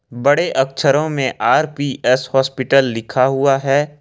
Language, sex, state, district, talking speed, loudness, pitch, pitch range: Hindi, male, Jharkhand, Ranchi, 150 wpm, -16 LUFS, 135 Hz, 130-145 Hz